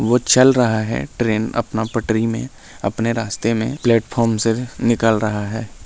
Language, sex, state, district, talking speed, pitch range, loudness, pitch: Hindi, male, Chhattisgarh, Sarguja, 175 wpm, 110-120 Hz, -18 LUFS, 115 Hz